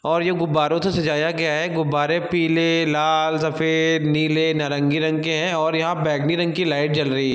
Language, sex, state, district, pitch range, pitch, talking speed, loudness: Hindi, male, Uttar Pradesh, Gorakhpur, 150-165 Hz, 160 Hz, 205 wpm, -20 LUFS